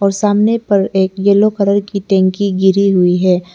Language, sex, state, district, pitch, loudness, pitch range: Hindi, female, Arunachal Pradesh, Lower Dibang Valley, 200 Hz, -13 LUFS, 190-200 Hz